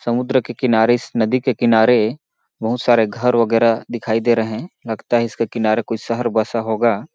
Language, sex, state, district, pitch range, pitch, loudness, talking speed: Hindi, male, Chhattisgarh, Balrampur, 110-120 Hz, 115 Hz, -18 LUFS, 195 wpm